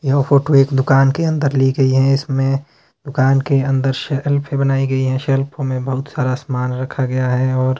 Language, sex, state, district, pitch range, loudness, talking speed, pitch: Hindi, male, Himachal Pradesh, Shimla, 130-140 Hz, -17 LUFS, 210 wpm, 135 Hz